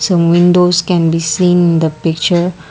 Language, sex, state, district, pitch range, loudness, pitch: English, female, Assam, Kamrup Metropolitan, 165-180 Hz, -12 LUFS, 175 Hz